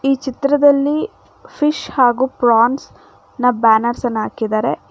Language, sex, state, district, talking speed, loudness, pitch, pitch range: Kannada, female, Karnataka, Bangalore, 110 wpm, -16 LUFS, 250 Hz, 235-280 Hz